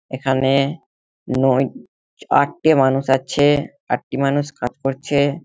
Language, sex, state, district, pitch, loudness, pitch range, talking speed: Bengali, male, West Bengal, Malda, 135 Hz, -19 LUFS, 130-145 Hz, 110 wpm